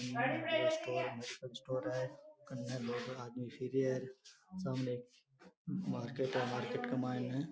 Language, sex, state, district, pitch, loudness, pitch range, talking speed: Marwari, male, Rajasthan, Nagaur, 130 Hz, -39 LUFS, 125-135 Hz, 130 wpm